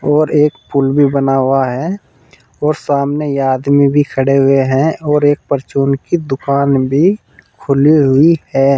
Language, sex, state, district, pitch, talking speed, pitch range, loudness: Hindi, male, Uttar Pradesh, Saharanpur, 140 Hz, 165 wpm, 135-150 Hz, -13 LUFS